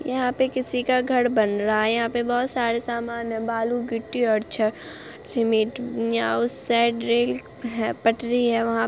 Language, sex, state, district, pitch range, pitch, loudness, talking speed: Hindi, female, Bihar, Saharsa, 225-245 Hz, 235 Hz, -23 LUFS, 185 wpm